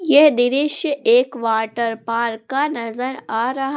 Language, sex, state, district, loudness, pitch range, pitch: Hindi, female, Jharkhand, Palamu, -19 LUFS, 230-285 Hz, 245 Hz